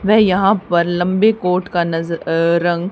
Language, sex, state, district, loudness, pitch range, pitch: Hindi, female, Haryana, Charkhi Dadri, -16 LUFS, 170-195 Hz, 175 Hz